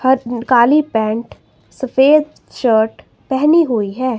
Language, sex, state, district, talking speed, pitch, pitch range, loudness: Hindi, female, Himachal Pradesh, Shimla, 100 wpm, 255 Hz, 230-280 Hz, -15 LUFS